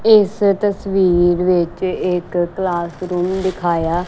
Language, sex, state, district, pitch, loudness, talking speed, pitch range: Punjabi, female, Punjab, Kapurthala, 180 Hz, -17 LUFS, 120 wpm, 175-190 Hz